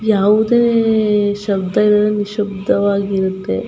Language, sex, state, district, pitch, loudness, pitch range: Kannada, female, Karnataka, Chamarajanagar, 205 Hz, -15 LUFS, 200-215 Hz